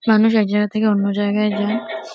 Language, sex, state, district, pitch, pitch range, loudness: Bengali, female, West Bengal, Kolkata, 210 Hz, 210-220 Hz, -18 LUFS